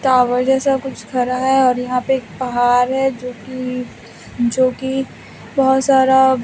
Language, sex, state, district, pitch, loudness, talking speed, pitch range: Hindi, female, Bihar, Katihar, 255 Hz, -17 LUFS, 170 wpm, 250-265 Hz